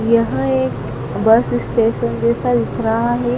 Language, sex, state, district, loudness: Hindi, female, Madhya Pradesh, Dhar, -17 LUFS